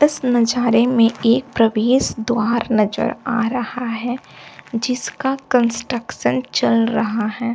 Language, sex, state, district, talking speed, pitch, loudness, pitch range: Hindi, female, Uttar Pradesh, Jyotiba Phule Nagar, 120 wpm, 235 Hz, -18 LUFS, 225-250 Hz